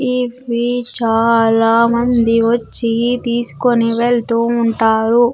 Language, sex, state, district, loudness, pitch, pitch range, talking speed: Telugu, female, Andhra Pradesh, Sri Satya Sai, -15 LUFS, 235 Hz, 230-240 Hz, 80 wpm